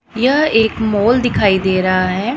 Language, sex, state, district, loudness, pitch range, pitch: Hindi, female, Punjab, Pathankot, -14 LUFS, 190-245 Hz, 220 Hz